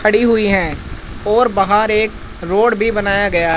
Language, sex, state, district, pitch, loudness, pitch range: Hindi, male, Haryana, Rohtak, 210 Hz, -15 LUFS, 195-220 Hz